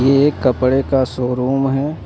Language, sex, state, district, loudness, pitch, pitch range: Hindi, male, Uttar Pradesh, Lucknow, -16 LUFS, 135 Hz, 130-135 Hz